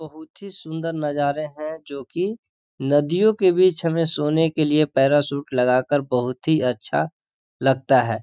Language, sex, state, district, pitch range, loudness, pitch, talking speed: Hindi, male, Chhattisgarh, Korba, 135-165 Hz, -21 LUFS, 150 Hz, 140 wpm